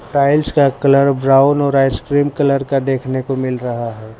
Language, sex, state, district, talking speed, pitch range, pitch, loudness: Hindi, male, Gujarat, Valsad, 185 wpm, 130-140 Hz, 135 Hz, -15 LUFS